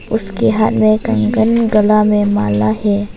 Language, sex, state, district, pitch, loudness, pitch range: Hindi, female, Arunachal Pradesh, Papum Pare, 215 Hz, -13 LUFS, 205-220 Hz